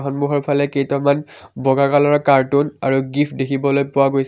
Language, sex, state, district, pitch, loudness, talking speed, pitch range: Assamese, male, Assam, Kamrup Metropolitan, 140 Hz, -17 LUFS, 140 wpm, 135-145 Hz